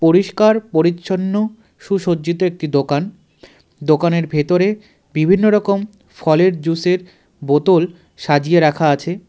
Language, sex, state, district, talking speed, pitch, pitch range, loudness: Bengali, male, West Bengal, Darjeeling, 95 wpm, 175 Hz, 155-195 Hz, -16 LUFS